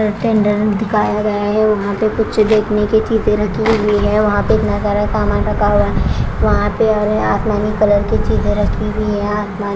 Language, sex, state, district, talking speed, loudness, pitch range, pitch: Hindi, female, Punjab, Kapurthala, 210 wpm, -15 LUFS, 205-215 Hz, 210 Hz